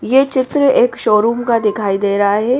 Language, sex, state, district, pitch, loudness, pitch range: Hindi, female, Haryana, Rohtak, 230 Hz, -14 LUFS, 210-260 Hz